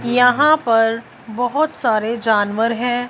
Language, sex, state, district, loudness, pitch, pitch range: Hindi, female, Punjab, Fazilka, -17 LUFS, 235 Hz, 225-245 Hz